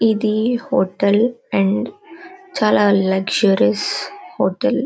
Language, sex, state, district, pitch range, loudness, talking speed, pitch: Telugu, female, Karnataka, Bellary, 195-260 Hz, -17 LUFS, 100 wpm, 215 Hz